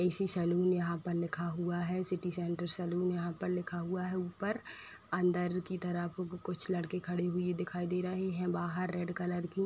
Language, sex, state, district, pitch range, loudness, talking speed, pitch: Hindi, female, Uttar Pradesh, Etah, 175-180 Hz, -35 LUFS, 200 wpm, 180 Hz